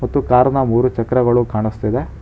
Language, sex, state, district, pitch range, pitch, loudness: Kannada, male, Karnataka, Bangalore, 115-125 Hz, 125 Hz, -16 LUFS